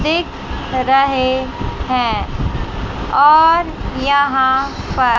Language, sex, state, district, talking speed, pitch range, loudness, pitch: Hindi, female, Chandigarh, Chandigarh, 80 wpm, 260-290 Hz, -16 LUFS, 270 Hz